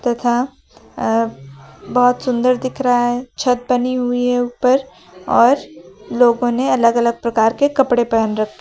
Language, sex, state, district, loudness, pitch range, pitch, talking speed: Hindi, female, Uttar Pradesh, Lucknow, -16 LUFS, 235-250 Hz, 245 Hz, 155 wpm